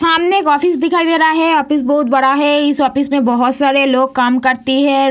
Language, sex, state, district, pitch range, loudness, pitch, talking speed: Hindi, female, Bihar, Samastipur, 265-315 Hz, -13 LUFS, 280 Hz, 235 wpm